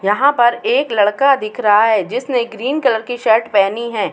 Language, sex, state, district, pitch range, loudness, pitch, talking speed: Hindi, female, Uttar Pradesh, Muzaffarnagar, 215-275 Hz, -15 LUFS, 235 Hz, 205 wpm